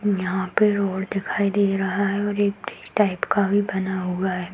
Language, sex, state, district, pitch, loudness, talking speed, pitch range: Hindi, female, Bihar, Darbhanga, 195 Hz, -22 LUFS, 185 wpm, 190-205 Hz